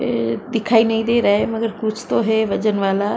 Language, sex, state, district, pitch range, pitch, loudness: Hindi, female, Maharashtra, Mumbai Suburban, 205-225 Hz, 220 Hz, -18 LUFS